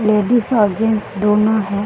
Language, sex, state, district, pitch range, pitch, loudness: Hindi, female, Bihar, Bhagalpur, 210-220 Hz, 215 Hz, -16 LUFS